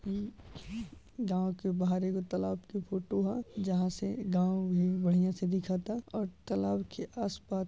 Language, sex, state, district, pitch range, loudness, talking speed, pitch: Bhojpuri, male, Uttar Pradesh, Gorakhpur, 180-200 Hz, -33 LUFS, 165 wpm, 185 Hz